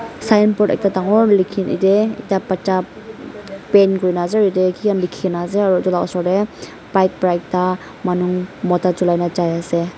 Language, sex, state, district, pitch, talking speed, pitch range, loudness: Nagamese, female, Nagaland, Dimapur, 185 Hz, 185 wpm, 180-200 Hz, -17 LUFS